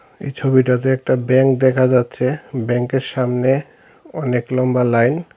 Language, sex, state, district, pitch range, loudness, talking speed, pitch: Bengali, male, Tripura, Dhalai, 125-135 Hz, -17 LUFS, 135 wpm, 130 Hz